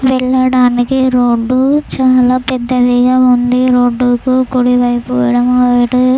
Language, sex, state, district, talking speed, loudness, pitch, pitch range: Telugu, female, Andhra Pradesh, Chittoor, 80 wpm, -11 LUFS, 250 Hz, 245-255 Hz